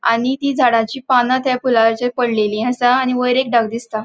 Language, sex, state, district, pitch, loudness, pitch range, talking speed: Konkani, female, Goa, North and South Goa, 245 Hz, -16 LUFS, 230-255 Hz, 195 wpm